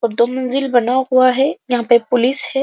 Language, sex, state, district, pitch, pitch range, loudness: Hindi, female, Uttar Pradesh, Jyotiba Phule Nagar, 255 Hz, 245-260 Hz, -15 LUFS